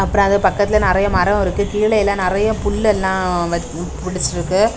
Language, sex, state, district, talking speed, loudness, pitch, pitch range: Tamil, female, Tamil Nadu, Kanyakumari, 140 wpm, -17 LUFS, 200 Hz, 185-205 Hz